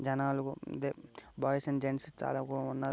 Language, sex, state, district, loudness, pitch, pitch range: Telugu, male, Andhra Pradesh, Guntur, -36 LUFS, 135 Hz, 135-140 Hz